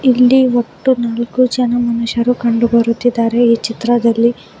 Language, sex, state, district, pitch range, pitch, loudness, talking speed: Kannada, female, Karnataka, Bangalore, 235-245 Hz, 240 Hz, -14 LUFS, 115 wpm